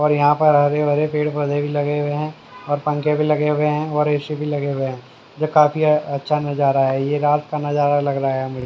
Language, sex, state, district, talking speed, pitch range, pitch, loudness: Hindi, male, Haryana, Jhajjar, 250 wpm, 145-150 Hz, 145 Hz, -19 LUFS